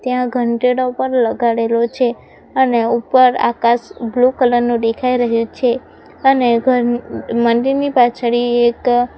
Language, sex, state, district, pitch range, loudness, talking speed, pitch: Gujarati, female, Gujarat, Valsad, 235-250 Hz, -15 LUFS, 130 wpm, 240 Hz